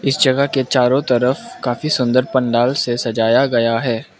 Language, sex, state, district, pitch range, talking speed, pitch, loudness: Hindi, male, Mizoram, Aizawl, 120-135 Hz, 170 wpm, 125 Hz, -16 LUFS